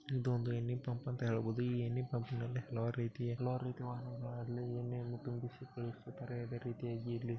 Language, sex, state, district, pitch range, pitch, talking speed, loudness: Kannada, male, Karnataka, Bellary, 120-125 Hz, 120 Hz, 120 wpm, -41 LUFS